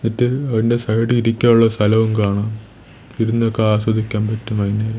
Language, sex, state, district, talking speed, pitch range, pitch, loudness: Malayalam, male, Kerala, Thiruvananthapuram, 120 wpm, 110-115 Hz, 110 Hz, -17 LUFS